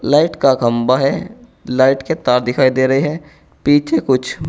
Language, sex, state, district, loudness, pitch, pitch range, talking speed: Hindi, male, Uttar Pradesh, Saharanpur, -15 LUFS, 135 Hz, 130-155 Hz, 175 wpm